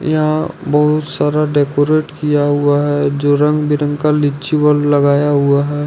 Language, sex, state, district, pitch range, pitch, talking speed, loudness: Hindi, male, Jharkhand, Ranchi, 145-150 Hz, 145 Hz, 165 wpm, -14 LUFS